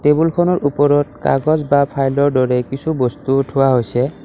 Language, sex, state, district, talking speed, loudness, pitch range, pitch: Assamese, male, Assam, Kamrup Metropolitan, 140 wpm, -16 LUFS, 130-145 Hz, 140 Hz